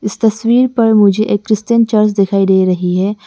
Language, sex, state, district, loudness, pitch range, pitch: Hindi, female, Arunachal Pradesh, Lower Dibang Valley, -12 LUFS, 195-225 Hz, 210 Hz